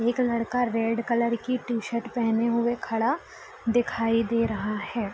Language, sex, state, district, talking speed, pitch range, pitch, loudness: Hindi, female, Bihar, East Champaran, 165 wpm, 225-240 Hz, 235 Hz, -26 LUFS